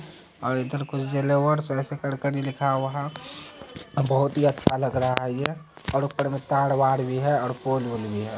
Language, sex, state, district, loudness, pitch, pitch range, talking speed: Hindi, male, Bihar, Araria, -25 LUFS, 140 Hz, 130-145 Hz, 195 wpm